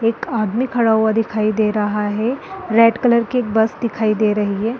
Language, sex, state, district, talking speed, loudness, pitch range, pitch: Hindi, female, Uttarakhand, Uttarkashi, 210 wpm, -17 LUFS, 215-235 Hz, 220 Hz